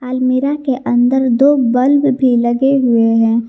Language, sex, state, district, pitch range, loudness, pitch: Hindi, female, Jharkhand, Garhwa, 240-265 Hz, -13 LUFS, 255 Hz